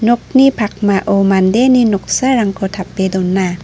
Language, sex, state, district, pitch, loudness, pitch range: Garo, female, Meghalaya, North Garo Hills, 200 Hz, -13 LUFS, 190-240 Hz